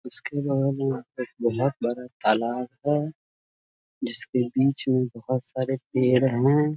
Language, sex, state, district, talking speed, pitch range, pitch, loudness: Hindi, male, Bihar, Muzaffarpur, 135 wpm, 125-135 Hz, 130 Hz, -25 LUFS